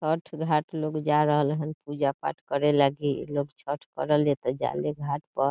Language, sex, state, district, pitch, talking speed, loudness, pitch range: Bhojpuri, female, Bihar, Saran, 145 Hz, 205 wpm, -27 LUFS, 145-155 Hz